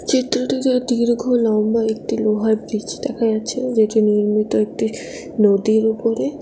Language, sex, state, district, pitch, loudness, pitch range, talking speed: Bengali, female, West Bengal, Alipurduar, 220 Hz, -18 LUFS, 215-245 Hz, 120 wpm